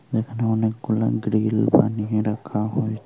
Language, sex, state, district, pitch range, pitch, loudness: Bengali, female, Tripura, Unakoti, 105-110 Hz, 110 Hz, -22 LUFS